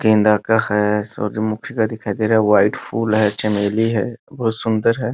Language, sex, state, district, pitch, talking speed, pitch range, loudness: Hindi, male, Bihar, Muzaffarpur, 110 Hz, 210 wpm, 105-115 Hz, -18 LUFS